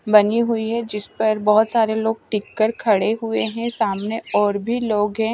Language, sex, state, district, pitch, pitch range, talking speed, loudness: Hindi, female, Maharashtra, Mumbai Suburban, 220 Hz, 210-225 Hz, 190 wpm, -20 LUFS